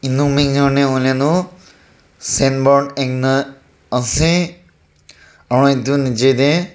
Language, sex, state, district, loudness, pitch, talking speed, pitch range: Nagamese, male, Nagaland, Dimapur, -15 LUFS, 140 Hz, 60 wpm, 130-145 Hz